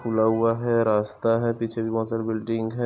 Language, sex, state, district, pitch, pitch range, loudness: Hindi, male, Chhattisgarh, Korba, 115 Hz, 110-115 Hz, -24 LUFS